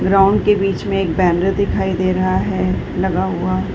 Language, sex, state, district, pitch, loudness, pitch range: Hindi, female, Chhattisgarh, Bilaspur, 190 Hz, -17 LUFS, 185-195 Hz